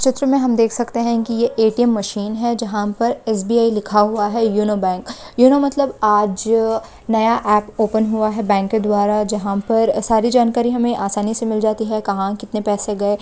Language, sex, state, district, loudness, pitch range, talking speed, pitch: Hindi, female, West Bengal, Malda, -17 LUFS, 210-235 Hz, 200 wpm, 220 Hz